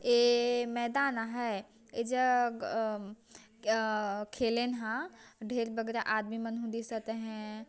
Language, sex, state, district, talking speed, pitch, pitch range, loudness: Chhattisgarhi, female, Chhattisgarh, Jashpur, 125 wpm, 230 Hz, 220-240 Hz, -33 LUFS